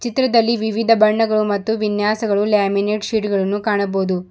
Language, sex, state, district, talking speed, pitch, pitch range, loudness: Kannada, female, Karnataka, Bidar, 125 wpm, 215 Hz, 205-220 Hz, -17 LUFS